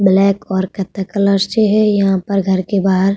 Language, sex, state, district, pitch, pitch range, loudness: Hindi, female, Uttar Pradesh, Budaun, 195 Hz, 190-200 Hz, -15 LUFS